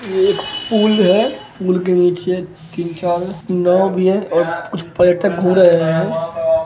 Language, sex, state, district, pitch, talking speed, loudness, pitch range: Hindi, male, Bihar, Begusarai, 180 Hz, 170 wpm, -16 LUFS, 170-195 Hz